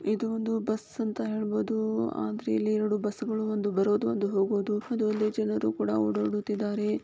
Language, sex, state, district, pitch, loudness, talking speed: Kannada, female, Karnataka, Shimoga, 210 Hz, -29 LUFS, 155 wpm